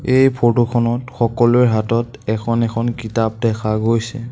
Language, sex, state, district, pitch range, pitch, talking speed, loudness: Assamese, male, Assam, Sonitpur, 115-120 Hz, 115 Hz, 140 wpm, -17 LUFS